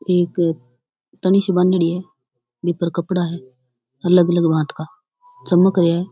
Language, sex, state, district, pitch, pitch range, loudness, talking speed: Rajasthani, female, Rajasthan, Churu, 175 Hz, 155-180 Hz, -18 LUFS, 155 wpm